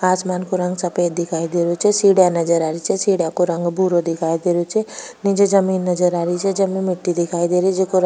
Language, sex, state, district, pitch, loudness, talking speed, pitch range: Rajasthani, female, Rajasthan, Nagaur, 180 Hz, -18 LUFS, 255 wpm, 175-190 Hz